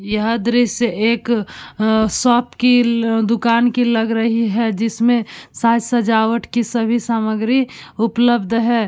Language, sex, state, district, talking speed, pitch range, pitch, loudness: Hindi, female, Uttar Pradesh, Budaun, 130 wpm, 225-240 Hz, 230 Hz, -17 LUFS